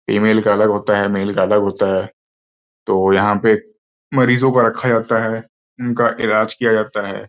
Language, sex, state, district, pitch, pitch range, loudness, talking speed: Hindi, male, Uttar Pradesh, Gorakhpur, 110 Hz, 100-115 Hz, -16 LUFS, 190 wpm